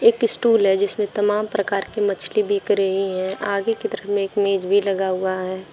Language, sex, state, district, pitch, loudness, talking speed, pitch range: Hindi, female, Uttar Pradesh, Shamli, 200 Hz, -20 LUFS, 220 wpm, 195-210 Hz